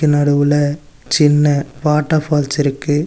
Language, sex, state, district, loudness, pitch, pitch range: Tamil, male, Tamil Nadu, Nilgiris, -15 LUFS, 145 Hz, 145-150 Hz